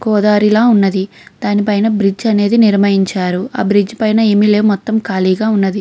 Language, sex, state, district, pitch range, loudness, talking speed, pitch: Telugu, female, Andhra Pradesh, Krishna, 195-215 Hz, -13 LUFS, 165 wpm, 205 Hz